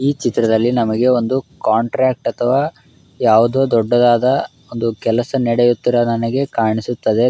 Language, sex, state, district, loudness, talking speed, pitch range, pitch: Kannada, male, Karnataka, Raichur, -16 LUFS, 105 wpm, 115-130 Hz, 120 Hz